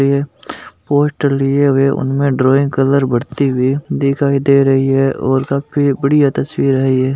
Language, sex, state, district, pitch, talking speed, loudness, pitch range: Hindi, male, Rajasthan, Nagaur, 140 Hz, 150 wpm, -14 LUFS, 135-140 Hz